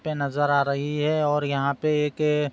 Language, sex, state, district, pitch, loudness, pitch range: Hindi, male, Bihar, Sitamarhi, 150 Hz, -24 LUFS, 140-150 Hz